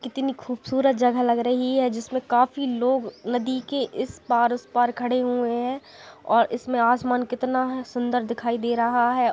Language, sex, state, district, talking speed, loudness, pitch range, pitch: Hindi, female, Bihar, Gaya, 180 wpm, -23 LUFS, 240-255 Hz, 245 Hz